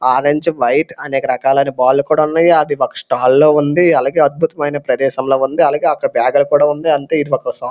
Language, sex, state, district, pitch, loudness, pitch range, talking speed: Telugu, male, Andhra Pradesh, Srikakulam, 145 Hz, -14 LUFS, 135-155 Hz, 210 wpm